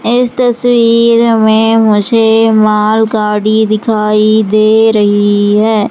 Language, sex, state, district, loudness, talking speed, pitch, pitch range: Hindi, male, Madhya Pradesh, Katni, -9 LUFS, 90 wpm, 220 Hz, 215-225 Hz